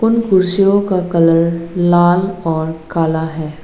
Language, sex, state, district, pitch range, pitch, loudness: Hindi, female, Arunachal Pradesh, Lower Dibang Valley, 160-185 Hz, 175 Hz, -14 LUFS